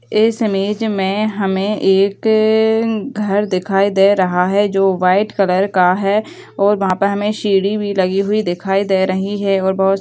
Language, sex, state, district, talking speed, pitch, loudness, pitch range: Hindi, female, Bihar, Begusarai, 180 wpm, 200 Hz, -15 LUFS, 190-210 Hz